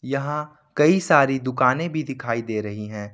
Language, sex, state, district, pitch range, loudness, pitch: Hindi, male, Jharkhand, Ranchi, 115-150 Hz, -22 LUFS, 135 Hz